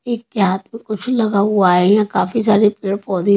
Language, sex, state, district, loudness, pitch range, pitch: Hindi, female, Haryana, Rohtak, -16 LUFS, 195-225 Hz, 210 Hz